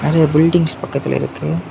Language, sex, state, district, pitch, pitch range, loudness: Tamil, male, Tamil Nadu, Kanyakumari, 155 Hz, 110-165 Hz, -16 LUFS